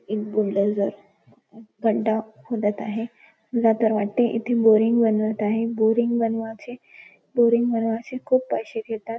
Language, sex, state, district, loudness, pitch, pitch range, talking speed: Marathi, female, Maharashtra, Nagpur, -22 LUFS, 225 Hz, 220-235 Hz, 125 wpm